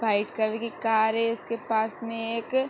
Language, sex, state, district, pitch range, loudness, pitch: Hindi, female, Uttar Pradesh, Hamirpur, 220-230 Hz, -27 LUFS, 225 Hz